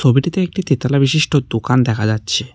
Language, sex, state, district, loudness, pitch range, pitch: Bengali, male, West Bengal, Cooch Behar, -16 LUFS, 115-150 Hz, 130 Hz